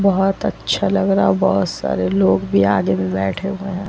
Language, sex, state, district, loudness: Hindi, female, Bihar, Vaishali, -18 LUFS